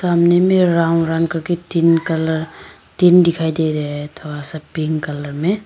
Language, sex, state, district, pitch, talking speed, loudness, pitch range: Hindi, female, Arunachal Pradesh, Papum Pare, 165 Hz, 180 wpm, -17 LUFS, 155-175 Hz